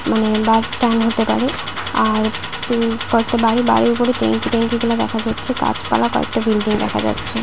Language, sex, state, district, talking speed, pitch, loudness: Bengali, female, West Bengal, Paschim Medinipur, 210 wpm, 225 Hz, -18 LUFS